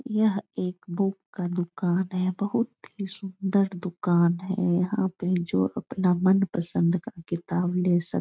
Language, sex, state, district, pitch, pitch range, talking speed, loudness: Hindi, female, Bihar, Jahanabad, 185 Hz, 175-195 Hz, 155 wpm, -26 LUFS